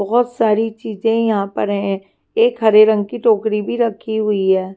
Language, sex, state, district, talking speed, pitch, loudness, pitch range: Hindi, female, Himachal Pradesh, Shimla, 190 wpm, 220 Hz, -17 LUFS, 205-225 Hz